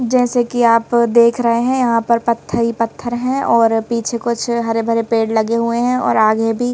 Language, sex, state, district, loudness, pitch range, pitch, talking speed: Hindi, female, Madhya Pradesh, Bhopal, -15 LUFS, 230-240 Hz, 235 Hz, 205 wpm